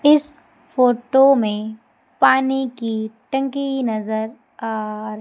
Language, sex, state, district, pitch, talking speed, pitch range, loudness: Hindi, female, Madhya Pradesh, Umaria, 240 Hz, 105 wpm, 220-270 Hz, -19 LUFS